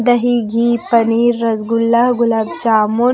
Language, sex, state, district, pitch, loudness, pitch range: Hindi, female, Haryana, Rohtak, 235 Hz, -14 LUFS, 225-240 Hz